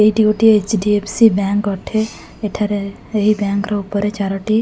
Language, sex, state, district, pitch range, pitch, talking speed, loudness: Odia, female, Odisha, Khordha, 200-215 Hz, 210 Hz, 145 wpm, -17 LUFS